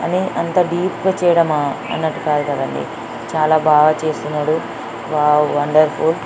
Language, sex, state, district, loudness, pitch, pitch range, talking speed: Telugu, female, Andhra Pradesh, Srikakulam, -17 LUFS, 155 Hz, 145-165 Hz, 145 wpm